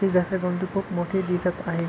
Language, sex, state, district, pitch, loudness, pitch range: Marathi, male, Maharashtra, Pune, 180 Hz, -26 LUFS, 175-190 Hz